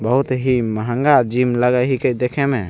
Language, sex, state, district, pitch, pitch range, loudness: Maithili, male, Bihar, Begusarai, 125 Hz, 120-130 Hz, -17 LUFS